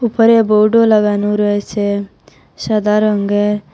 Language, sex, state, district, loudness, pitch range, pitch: Bengali, female, Assam, Hailakandi, -13 LUFS, 205-215 Hz, 210 Hz